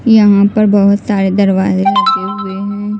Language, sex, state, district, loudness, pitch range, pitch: Hindi, female, Bihar, West Champaran, -11 LUFS, 195-210 Hz, 200 Hz